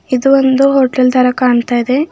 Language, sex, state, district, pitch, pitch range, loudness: Kannada, female, Karnataka, Bidar, 255 Hz, 250-270 Hz, -11 LUFS